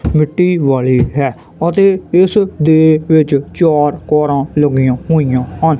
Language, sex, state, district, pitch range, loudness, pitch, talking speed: Punjabi, male, Punjab, Kapurthala, 140-165 Hz, -12 LUFS, 150 Hz, 125 wpm